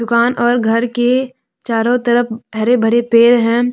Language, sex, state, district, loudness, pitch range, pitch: Hindi, female, Jharkhand, Deoghar, -14 LUFS, 230-245 Hz, 240 Hz